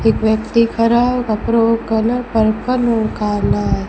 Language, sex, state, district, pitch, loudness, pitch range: Hindi, female, Rajasthan, Bikaner, 225 Hz, -16 LUFS, 220-235 Hz